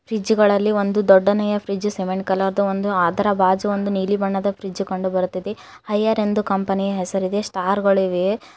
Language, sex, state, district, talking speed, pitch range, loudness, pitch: Kannada, female, Karnataka, Koppal, 170 wpm, 190-205 Hz, -20 LUFS, 195 Hz